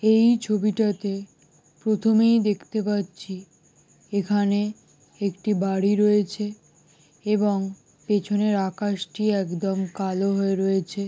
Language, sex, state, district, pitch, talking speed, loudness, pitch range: Bengali, male, West Bengal, Jalpaiguri, 200 Hz, 90 wpm, -24 LUFS, 190-210 Hz